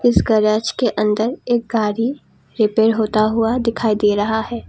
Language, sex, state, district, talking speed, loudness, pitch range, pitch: Hindi, female, Assam, Kamrup Metropolitan, 165 wpm, -18 LUFS, 215-235 Hz, 220 Hz